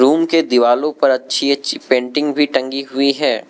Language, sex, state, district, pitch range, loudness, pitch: Hindi, male, Arunachal Pradesh, Lower Dibang Valley, 130-150 Hz, -16 LUFS, 140 Hz